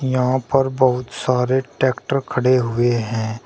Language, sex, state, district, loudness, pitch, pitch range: Hindi, male, Uttar Pradesh, Shamli, -19 LUFS, 130 Hz, 120-130 Hz